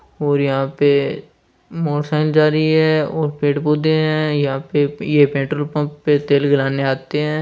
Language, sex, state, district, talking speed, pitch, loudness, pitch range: Hindi, male, Rajasthan, Churu, 160 wpm, 145 Hz, -17 LUFS, 145-155 Hz